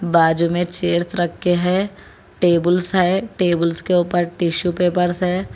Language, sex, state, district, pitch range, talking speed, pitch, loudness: Hindi, female, Telangana, Hyderabad, 170-180 Hz, 150 wpm, 175 Hz, -18 LUFS